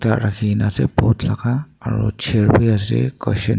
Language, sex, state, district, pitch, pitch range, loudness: Nagamese, male, Nagaland, Dimapur, 110 Hz, 105-115 Hz, -18 LUFS